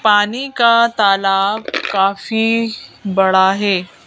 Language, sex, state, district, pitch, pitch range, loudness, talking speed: Hindi, female, Madhya Pradesh, Bhopal, 205 Hz, 195-225 Hz, -15 LUFS, 90 wpm